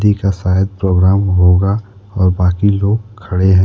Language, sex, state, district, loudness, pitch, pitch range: Hindi, male, Jharkhand, Deoghar, -14 LUFS, 95 Hz, 95-100 Hz